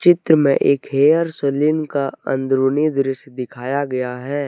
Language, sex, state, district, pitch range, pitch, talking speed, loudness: Hindi, male, Jharkhand, Deoghar, 135-150 Hz, 140 Hz, 145 wpm, -18 LUFS